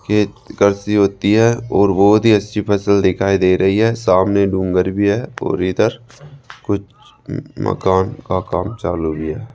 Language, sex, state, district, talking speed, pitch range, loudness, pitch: Hindi, male, Rajasthan, Jaipur, 155 wpm, 95-110 Hz, -16 LUFS, 100 Hz